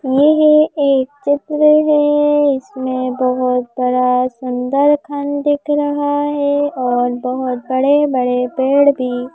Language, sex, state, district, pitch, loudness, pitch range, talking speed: Hindi, female, Madhya Pradesh, Bhopal, 275 Hz, -15 LUFS, 255-290 Hz, 115 wpm